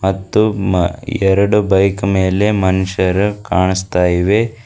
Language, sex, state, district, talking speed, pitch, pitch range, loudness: Kannada, female, Karnataka, Bidar, 105 wpm, 95 Hz, 95-105 Hz, -15 LUFS